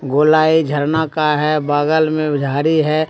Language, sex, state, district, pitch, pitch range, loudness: Hindi, male, Bihar, Katihar, 155 Hz, 145-155 Hz, -15 LUFS